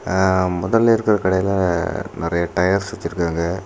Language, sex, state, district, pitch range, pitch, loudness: Tamil, male, Tamil Nadu, Kanyakumari, 85-100 Hz, 95 Hz, -19 LUFS